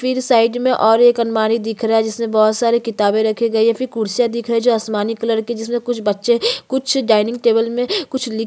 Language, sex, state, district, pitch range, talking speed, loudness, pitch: Hindi, female, Chhattisgarh, Sukma, 220-245 Hz, 255 wpm, -16 LUFS, 230 Hz